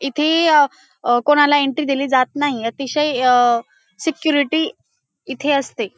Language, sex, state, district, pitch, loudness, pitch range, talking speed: Marathi, female, Maharashtra, Dhule, 285 Hz, -17 LUFS, 265-300 Hz, 120 wpm